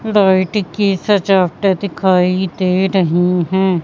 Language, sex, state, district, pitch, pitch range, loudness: Hindi, female, Madhya Pradesh, Katni, 190 Hz, 180-195 Hz, -15 LUFS